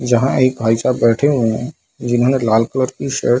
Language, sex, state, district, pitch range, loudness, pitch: Hindi, male, Bihar, Darbhanga, 115-130 Hz, -16 LUFS, 125 Hz